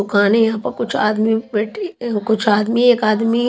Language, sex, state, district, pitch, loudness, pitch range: Hindi, female, Chhattisgarh, Raipur, 220 Hz, -17 LUFS, 210-235 Hz